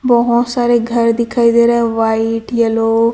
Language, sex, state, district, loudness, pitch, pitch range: Hindi, female, Chhattisgarh, Raipur, -13 LUFS, 235 Hz, 225-235 Hz